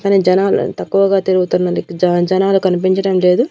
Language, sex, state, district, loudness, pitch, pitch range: Telugu, female, Andhra Pradesh, Annamaya, -14 LUFS, 185 Hz, 180-195 Hz